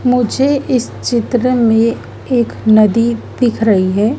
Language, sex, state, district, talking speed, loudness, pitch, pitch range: Hindi, female, Madhya Pradesh, Dhar, 130 wpm, -13 LUFS, 235 Hz, 220-250 Hz